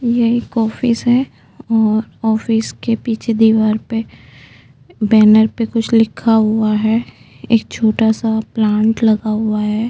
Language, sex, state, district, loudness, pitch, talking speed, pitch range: Hindi, female, Maharashtra, Chandrapur, -15 LUFS, 220 Hz, 140 wpm, 215-230 Hz